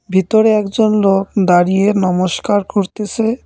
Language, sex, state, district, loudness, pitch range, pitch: Bengali, male, West Bengal, Cooch Behar, -14 LUFS, 190-215 Hz, 205 Hz